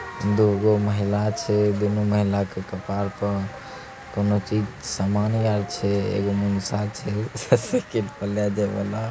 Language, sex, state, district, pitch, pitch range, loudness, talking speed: Angika, male, Bihar, Begusarai, 105 Hz, 100-105 Hz, -24 LUFS, 100 wpm